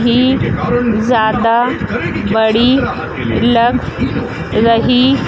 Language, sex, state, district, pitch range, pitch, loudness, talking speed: Hindi, female, Madhya Pradesh, Dhar, 230-250 Hz, 240 Hz, -13 LUFS, 55 wpm